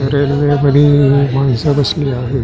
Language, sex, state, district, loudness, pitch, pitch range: Marathi, male, Maharashtra, Pune, -12 LUFS, 140 Hz, 135-145 Hz